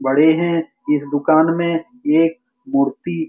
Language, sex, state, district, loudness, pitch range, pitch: Hindi, male, Bihar, Saran, -17 LUFS, 155-190 Hz, 165 Hz